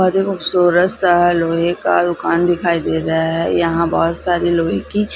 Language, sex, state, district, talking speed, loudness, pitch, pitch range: Hindi, female, Bihar, Lakhisarai, 185 wpm, -16 LUFS, 175 Hz, 165-180 Hz